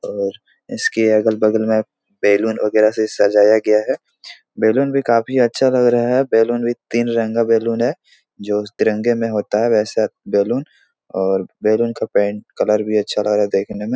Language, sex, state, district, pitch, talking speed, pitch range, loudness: Hindi, male, Bihar, Supaul, 110 Hz, 185 wpm, 105-120 Hz, -17 LUFS